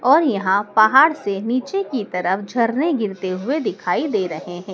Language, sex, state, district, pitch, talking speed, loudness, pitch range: Hindi, female, Madhya Pradesh, Dhar, 210 Hz, 175 wpm, -19 LUFS, 190-265 Hz